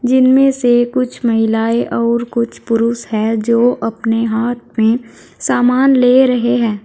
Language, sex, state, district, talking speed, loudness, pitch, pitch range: Hindi, female, Uttar Pradesh, Saharanpur, 140 wpm, -14 LUFS, 235 Hz, 230-250 Hz